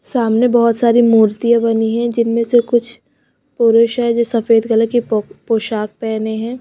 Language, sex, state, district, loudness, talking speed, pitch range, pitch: Hindi, female, Himachal Pradesh, Shimla, -15 LUFS, 170 wpm, 225-235 Hz, 230 Hz